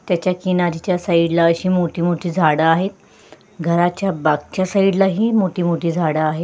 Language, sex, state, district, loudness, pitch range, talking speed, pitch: Marathi, female, Maharashtra, Sindhudurg, -18 LUFS, 165-185 Hz, 160 wpm, 175 Hz